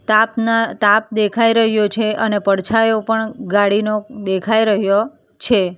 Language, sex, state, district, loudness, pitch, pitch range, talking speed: Gujarati, female, Gujarat, Valsad, -16 LUFS, 215 Hz, 205-225 Hz, 135 wpm